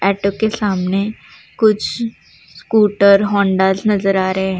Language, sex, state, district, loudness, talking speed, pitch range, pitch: Hindi, female, Uttar Pradesh, Jalaun, -16 LUFS, 130 wpm, 190-215 Hz, 200 Hz